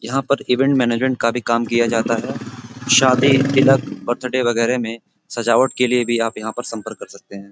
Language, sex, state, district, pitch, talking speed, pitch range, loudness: Hindi, male, Uttar Pradesh, Gorakhpur, 120 Hz, 205 wpm, 115-130 Hz, -18 LUFS